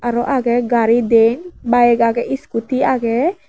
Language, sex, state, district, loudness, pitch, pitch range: Chakma, female, Tripura, West Tripura, -16 LUFS, 240 Hz, 230-260 Hz